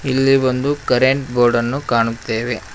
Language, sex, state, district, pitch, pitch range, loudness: Kannada, male, Karnataka, Koppal, 125 Hz, 120-135 Hz, -17 LUFS